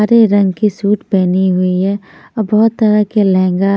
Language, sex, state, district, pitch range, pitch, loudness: Hindi, female, Punjab, Kapurthala, 190-215 Hz, 205 Hz, -13 LUFS